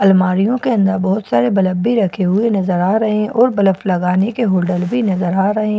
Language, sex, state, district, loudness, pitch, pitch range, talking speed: Hindi, female, Bihar, Katihar, -15 LUFS, 195 Hz, 185-215 Hz, 240 wpm